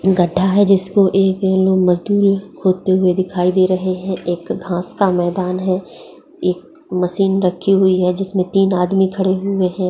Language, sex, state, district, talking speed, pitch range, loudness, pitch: Hindi, female, Bihar, Begusarai, 180 wpm, 180-195 Hz, -16 LUFS, 185 Hz